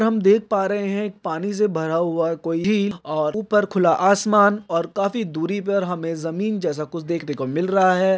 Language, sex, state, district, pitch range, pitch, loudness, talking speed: Hindi, male, Chhattisgarh, Rajnandgaon, 165-205 Hz, 190 Hz, -21 LUFS, 215 wpm